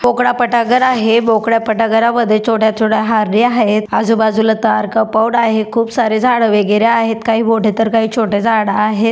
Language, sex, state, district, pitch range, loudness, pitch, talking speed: Marathi, female, Maharashtra, Dhule, 220-230 Hz, -13 LUFS, 225 Hz, 170 wpm